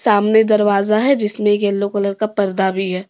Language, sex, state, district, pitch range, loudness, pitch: Hindi, female, Jharkhand, Deoghar, 200-215 Hz, -16 LUFS, 205 Hz